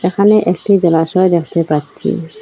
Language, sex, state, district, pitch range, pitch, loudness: Bengali, female, Assam, Hailakandi, 165-200 Hz, 175 Hz, -13 LUFS